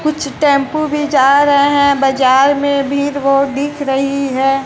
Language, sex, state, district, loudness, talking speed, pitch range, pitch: Hindi, female, Bihar, West Champaran, -13 LUFS, 165 wpm, 275-285 Hz, 280 Hz